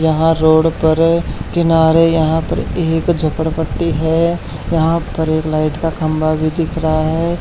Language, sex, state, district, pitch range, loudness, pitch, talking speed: Hindi, male, Haryana, Charkhi Dadri, 155-165 Hz, -15 LUFS, 160 Hz, 155 wpm